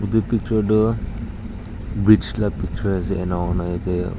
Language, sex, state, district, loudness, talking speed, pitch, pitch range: Nagamese, male, Nagaland, Dimapur, -21 LUFS, 115 wpm, 100 Hz, 90-110 Hz